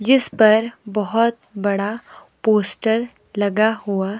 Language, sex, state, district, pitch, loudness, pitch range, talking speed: Hindi, female, Himachal Pradesh, Shimla, 215 Hz, -19 LUFS, 205-230 Hz, 100 wpm